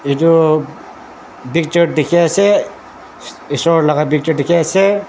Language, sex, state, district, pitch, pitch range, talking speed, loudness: Nagamese, male, Nagaland, Dimapur, 165 Hz, 150-170 Hz, 85 wpm, -13 LUFS